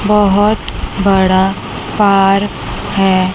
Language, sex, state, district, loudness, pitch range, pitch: Hindi, female, Chandigarh, Chandigarh, -13 LUFS, 190-205 Hz, 195 Hz